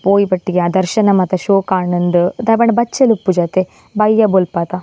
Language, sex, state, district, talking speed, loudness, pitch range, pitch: Tulu, female, Karnataka, Dakshina Kannada, 160 wpm, -14 LUFS, 180-215 Hz, 190 Hz